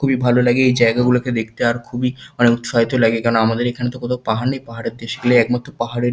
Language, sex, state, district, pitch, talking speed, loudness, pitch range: Bengali, male, West Bengal, Kolkata, 120 Hz, 205 wpm, -18 LUFS, 115-125 Hz